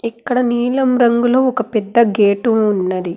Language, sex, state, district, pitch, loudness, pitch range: Telugu, female, Telangana, Hyderabad, 235 Hz, -15 LUFS, 210-245 Hz